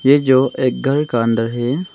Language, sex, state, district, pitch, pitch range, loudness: Hindi, male, Arunachal Pradesh, Longding, 130 Hz, 120-140 Hz, -16 LUFS